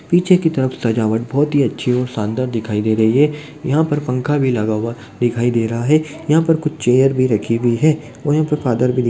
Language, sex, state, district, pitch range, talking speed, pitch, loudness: Hindi, male, Bihar, Muzaffarpur, 115-150 Hz, 245 wpm, 130 Hz, -17 LUFS